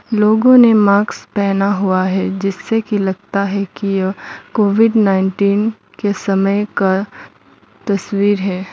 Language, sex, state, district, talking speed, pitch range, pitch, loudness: Hindi, female, Mizoram, Aizawl, 130 wpm, 195-210 Hz, 200 Hz, -15 LUFS